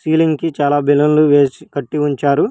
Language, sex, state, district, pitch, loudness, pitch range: Telugu, female, Telangana, Hyderabad, 145 Hz, -14 LUFS, 145-155 Hz